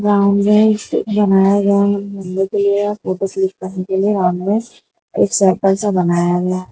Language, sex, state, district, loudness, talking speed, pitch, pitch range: Hindi, female, Gujarat, Valsad, -15 LUFS, 150 wpm, 200 Hz, 185-205 Hz